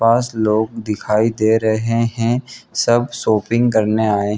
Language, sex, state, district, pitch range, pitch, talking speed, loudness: Hindi, male, Bihar, Jamui, 110-115 Hz, 110 Hz, 150 wpm, -17 LUFS